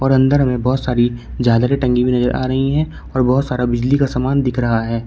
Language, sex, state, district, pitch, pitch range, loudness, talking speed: Hindi, male, Uttar Pradesh, Shamli, 125 Hz, 125-135 Hz, -16 LUFS, 250 wpm